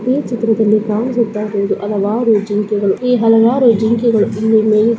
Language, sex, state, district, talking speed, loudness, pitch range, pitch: Kannada, female, Karnataka, Bellary, 130 wpm, -14 LUFS, 210-235 Hz, 220 Hz